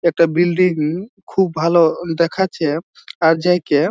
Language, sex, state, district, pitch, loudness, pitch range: Bengali, male, West Bengal, Jhargram, 170 Hz, -17 LUFS, 160-180 Hz